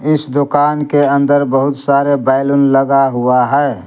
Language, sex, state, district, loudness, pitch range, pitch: Hindi, male, Jharkhand, Garhwa, -12 LUFS, 135-145 Hz, 140 Hz